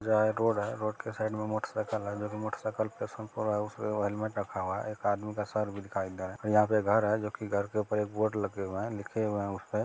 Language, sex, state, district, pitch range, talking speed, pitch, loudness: Maithili, male, Bihar, Begusarai, 100-110 Hz, 260 wpm, 105 Hz, -32 LUFS